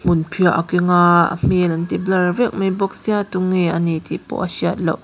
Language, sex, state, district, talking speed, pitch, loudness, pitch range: Mizo, female, Mizoram, Aizawl, 250 wpm, 180 Hz, -17 LUFS, 170-190 Hz